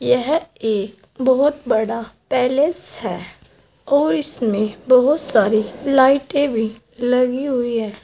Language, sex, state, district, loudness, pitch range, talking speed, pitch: Hindi, female, Uttar Pradesh, Saharanpur, -18 LUFS, 225-280 Hz, 110 wpm, 250 Hz